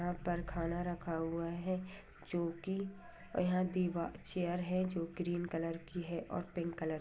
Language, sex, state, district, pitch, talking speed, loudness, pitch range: Hindi, female, Bihar, Saran, 175 Hz, 170 wpm, -39 LUFS, 170-180 Hz